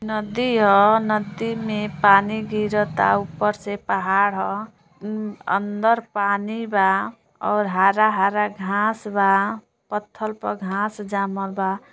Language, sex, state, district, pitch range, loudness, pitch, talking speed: Bhojpuri, female, Uttar Pradesh, Deoria, 195-215 Hz, -21 LUFS, 210 Hz, 135 wpm